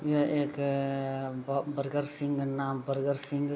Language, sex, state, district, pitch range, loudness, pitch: Hindi, male, Bihar, Saharsa, 135-145 Hz, -32 LUFS, 140 Hz